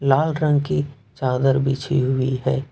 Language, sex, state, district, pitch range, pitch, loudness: Hindi, male, Jharkhand, Ranchi, 130-140 Hz, 135 Hz, -21 LUFS